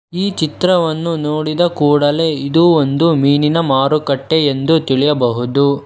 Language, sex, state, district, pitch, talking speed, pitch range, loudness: Kannada, male, Karnataka, Bangalore, 150 Hz, 100 wpm, 140-165 Hz, -14 LUFS